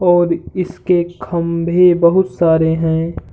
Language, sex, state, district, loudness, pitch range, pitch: Hindi, male, Uttar Pradesh, Hamirpur, -15 LUFS, 165-180 Hz, 170 Hz